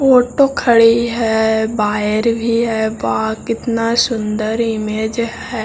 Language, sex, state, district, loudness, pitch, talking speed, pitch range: Hindi, male, Bihar, Jahanabad, -16 LUFS, 230 Hz, 115 wpm, 220-235 Hz